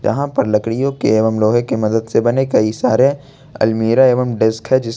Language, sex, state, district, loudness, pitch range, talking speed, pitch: Hindi, male, Jharkhand, Ranchi, -15 LUFS, 110-135 Hz, 205 wpm, 115 Hz